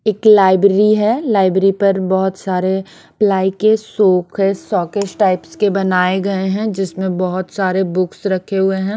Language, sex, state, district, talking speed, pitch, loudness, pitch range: Hindi, female, Chandigarh, Chandigarh, 165 wpm, 195 Hz, -15 LUFS, 185-205 Hz